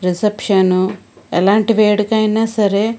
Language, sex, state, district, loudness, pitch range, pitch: Telugu, female, Andhra Pradesh, Srikakulam, -15 LUFS, 195-220 Hz, 210 Hz